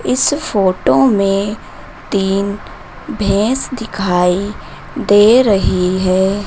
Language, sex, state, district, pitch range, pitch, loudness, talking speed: Hindi, female, Madhya Pradesh, Dhar, 185-210 Hz, 200 Hz, -14 LUFS, 85 wpm